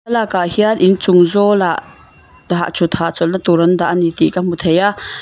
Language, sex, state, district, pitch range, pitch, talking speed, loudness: Mizo, female, Mizoram, Aizawl, 170-200 Hz, 180 Hz, 205 wpm, -14 LUFS